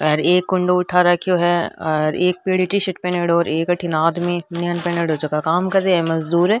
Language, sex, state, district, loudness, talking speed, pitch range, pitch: Rajasthani, female, Rajasthan, Nagaur, -18 LUFS, 190 wpm, 165-180 Hz, 175 Hz